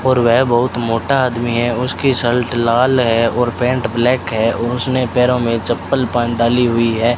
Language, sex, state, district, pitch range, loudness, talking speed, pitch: Hindi, male, Rajasthan, Bikaner, 115-125 Hz, -15 LUFS, 190 wpm, 120 Hz